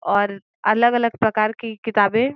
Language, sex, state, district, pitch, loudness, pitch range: Hindi, female, Uttar Pradesh, Gorakhpur, 220 Hz, -20 LUFS, 205-230 Hz